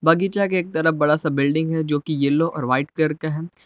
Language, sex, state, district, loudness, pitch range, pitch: Hindi, male, Jharkhand, Palamu, -20 LUFS, 150-165 Hz, 155 Hz